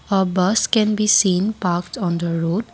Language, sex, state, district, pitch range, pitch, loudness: English, female, Assam, Kamrup Metropolitan, 175-210 Hz, 190 Hz, -18 LUFS